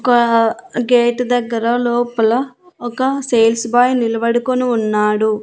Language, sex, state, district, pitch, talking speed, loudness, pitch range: Telugu, female, Andhra Pradesh, Annamaya, 240 Hz, 100 wpm, -15 LUFS, 230-245 Hz